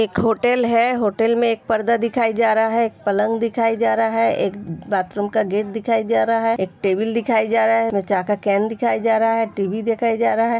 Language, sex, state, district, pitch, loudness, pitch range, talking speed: Hindi, female, Uttar Pradesh, Hamirpur, 225 Hz, -19 LUFS, 210-230 Hz, 250 wpm